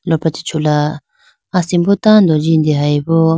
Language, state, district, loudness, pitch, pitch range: Idu Mishmi, Arunachal Pradesh, Lower Dibang Valley, -14 LUFS, 160 Hz, 150-175 Hz